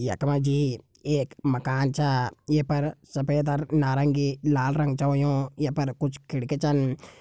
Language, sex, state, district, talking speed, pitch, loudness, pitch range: Garhwali, male, Uttarakhand, Tehri Garhwal, 160 wpm, 140 Hz, -26 LUFS, 135-145 Hz